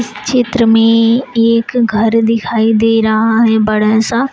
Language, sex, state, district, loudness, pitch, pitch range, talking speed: Hindi, female, Uttar Pradesh, Shamli, -11 LUFS, 225 Hz, 225-235 Hz, 140 wpm